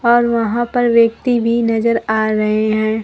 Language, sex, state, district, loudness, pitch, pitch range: Hindi, female, Bihar, Kaimur, -15 LUFS, 230 Hz, 220-235 Hz